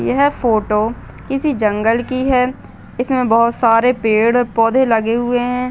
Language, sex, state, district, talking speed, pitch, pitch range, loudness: Hindi, female, Maharashtra, Aurangabad, 145 wpm, 240 Hz, 225-255 Hz, -15 LUFS